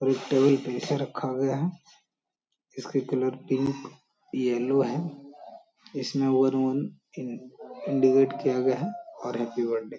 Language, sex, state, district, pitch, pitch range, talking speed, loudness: Hindi, male, Bihar, Jamui, 135 Hz, 130-145 Hz, 140 wpm, -27 LUFS